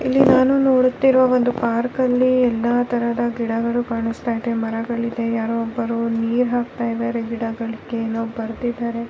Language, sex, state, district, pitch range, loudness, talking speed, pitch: Kannada, female, Karnataka, Raichur, 230-245 Hz, -20 LUFS, 130 wpm, 235 Hz